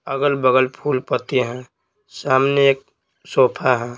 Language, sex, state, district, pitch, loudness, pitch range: Hindi, male, Bihar, Patna, 130 Hz, -18 LUFS, 130-140 Hz